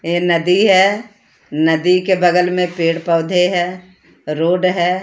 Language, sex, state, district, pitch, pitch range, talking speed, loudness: Hindi, male, Chandigarh, Chandigarh, 180 Hz, 170-185 Hz, 145 wpm, -15 LUFS